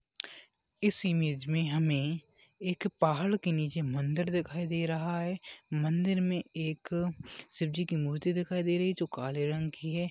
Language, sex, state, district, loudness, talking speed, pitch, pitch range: Hindi, male, Goa, North and South Goa, -32 LUFS, 170 wpm, 165 Hz, 155-175 Hz